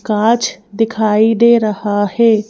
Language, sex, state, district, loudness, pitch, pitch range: Hindi, female, Madhya Pradesh, Bhopal, -13 LUFS, 220 Hz, 210-230 Hz